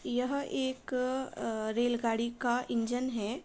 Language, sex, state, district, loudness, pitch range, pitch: Hindi, female, Uttar Pradesh, Varanasi, -33 LUFS, 230-255 Hz, 245 Hz